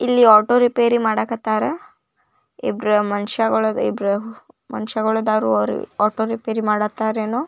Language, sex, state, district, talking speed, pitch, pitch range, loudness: Kannada, female, Karnataka, Belgaum, 130 wpm, 220 Hz, 210-230 Hz, -19 LUFS